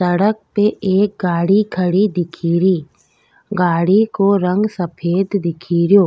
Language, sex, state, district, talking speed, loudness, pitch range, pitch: Rajasthani, female, Rajasthan, Nagaur, 110 wpm, -16 LUFS, 175-200 Hz, 185 Hz